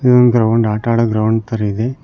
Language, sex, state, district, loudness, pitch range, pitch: Kannada, male, Karnataka, Koppal, -14 LUFS, 110-120 Hz, 115 Hz